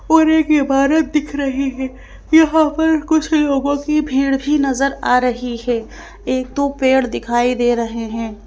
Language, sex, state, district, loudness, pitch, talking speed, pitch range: Hindi, female, Madhya Pradesh, Bhopal, -16 LUFS, 275 Hz, 170 wpm, 250-305 Hz